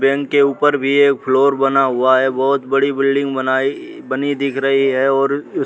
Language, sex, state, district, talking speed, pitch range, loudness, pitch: Hindi, male, Uttar Pradesh, Muzaffarnagar, 210 wpm, 135-140 Hz, -16 LUFS, 135 Hz